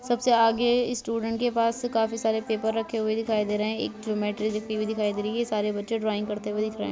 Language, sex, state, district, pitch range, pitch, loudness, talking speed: Hindi, female, Bihar, Vaishali, 215-230 Hz, 220 Hz, -26 LUFS, 260 wpm